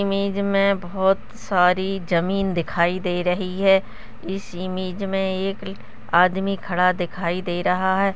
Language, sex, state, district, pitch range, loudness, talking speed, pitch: Hindi, female, Uttarakhand, Tehri Garhwal, 180-195 Hz, -22 LUFS, 140 wpm, 190 Hz